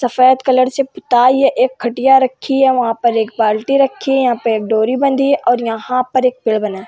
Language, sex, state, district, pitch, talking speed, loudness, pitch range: Hindi, female, Uttar Pradesh, Hamirpur, 255 Hz, 245 wpm, -14 LUFS, 230-265 Hz